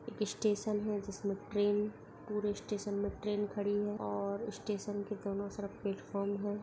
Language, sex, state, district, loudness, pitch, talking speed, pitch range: Hindi, male, Bihar, Darbhanga, -37 LUFS, 205 Hz, 165 wpm, 200-210 Hz